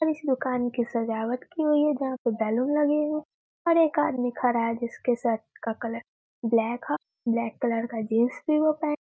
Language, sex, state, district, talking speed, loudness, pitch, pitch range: Hindi, female, Bihar, Muzaffarpur, 215 wpm, -26 LUFS, 245 Hz, 230-300 Hz